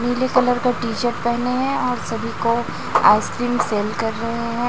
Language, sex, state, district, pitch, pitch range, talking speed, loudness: Hindi, female, Chhattisgarh, Raipur, 240 Hz, 230-245 Hz, 190 wpm, -20 LUFS